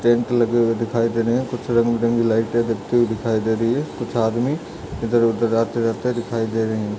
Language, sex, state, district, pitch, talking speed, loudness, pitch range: Hindi, male, Uttar Pradesh, Budaun, 115 Hz, 215 wpm, -20 LUFS, 115-120 Hz